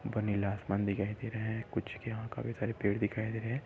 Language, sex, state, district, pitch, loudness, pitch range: Hindi, male, Uttar Pradesh, Gorakhpur, 110 Hz, -35 LUFS, 105-115 Hz